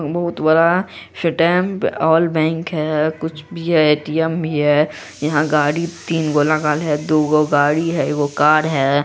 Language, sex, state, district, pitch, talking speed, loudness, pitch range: Hindi, female, Bihar, Araria, 155 Hz, 160 wpm, -17 LUFS, 150-165 Hz